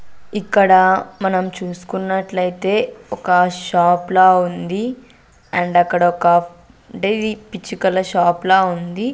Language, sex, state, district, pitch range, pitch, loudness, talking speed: Telugu, female, Andhra Pradesh, Sri Satya Sai, 175-200 Hz, 185 Hz, -17 LUFS, 105 wpm